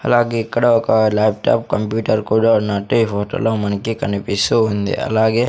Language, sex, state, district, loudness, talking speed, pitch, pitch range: Telugu, male, Andhra Pradesh, Sri Satya Sai, -17 LUFS, 140 wpm, 110 Hz, 105-115 Hz